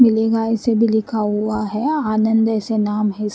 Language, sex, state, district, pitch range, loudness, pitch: Hindi, female, Haryana, Rohtak, 210-225 Hz, -18 LUFS, 220 Hz